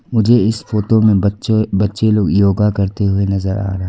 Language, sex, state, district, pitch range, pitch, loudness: Hindi, female, Arunachal Pradesh, Lower Dibang Valley, 100-110 Hz, 105 Hz, -15 LUFS